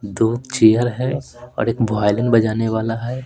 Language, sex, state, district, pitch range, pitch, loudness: Hindi, male, Bihar, Patna, 110-125 Hz, 115 Hz, -18 LUFS